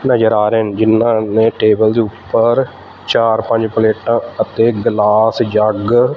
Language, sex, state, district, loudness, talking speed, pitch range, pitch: Punjabi, male, Punjab, Fazilka, -13 LUFS, 155 wpm, 110-115 Hz, 110 Hz